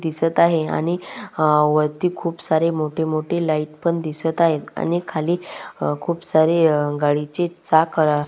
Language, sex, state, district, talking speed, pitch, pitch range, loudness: Marathi, female, Maharashtra, Solapur, 160 wpm, 160 Hz, 155-170 Hz, -20 LUFS